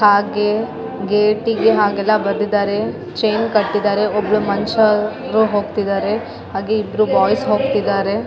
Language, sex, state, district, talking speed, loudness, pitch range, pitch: Kannada, female, Karnataka, Raichur, 100 wpm, -17 LUFS, 205-215 Hz, 210 Hz